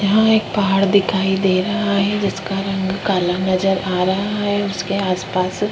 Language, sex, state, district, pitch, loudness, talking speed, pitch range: Hindi, female, Chhattisgarh, Sukma, 195 Hz, -18 LUFS, 190 wpm, 190-205 Hz